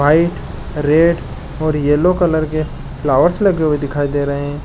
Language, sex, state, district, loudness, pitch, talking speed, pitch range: Chhattisgarhi, male, Chhattisgarh, Jashpur, -16 LUFS, 150 Hz, 165 wpm, 145-165 Hz